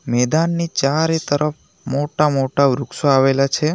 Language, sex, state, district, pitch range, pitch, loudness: Gujarati, male, Gujarat, Navsari, 135-160 Hz, 145 Hz, -18 LUFS